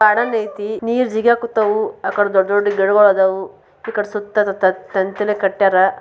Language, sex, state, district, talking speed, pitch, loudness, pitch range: Kannada, female, Karnataka, Bijapur, 100 wpm, 205 Hz, -17 LUFS, 195-220 Hz